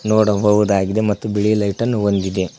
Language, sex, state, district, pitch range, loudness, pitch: Kannada, male, Karnataka, Koppal, 100-110 Hz, -17 LUFS, 105 Hz